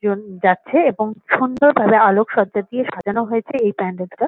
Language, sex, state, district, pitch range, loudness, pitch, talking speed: Bengali, female, West Bengal, Kolkata, 200-240 Hz, -17 LUFS, 215 Hz, 170 wpm